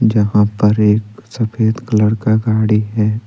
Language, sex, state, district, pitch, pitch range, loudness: Hindi, male, Jharkhand, Deoghar, 110 Hz, 105-110 Hz, -15 LUFS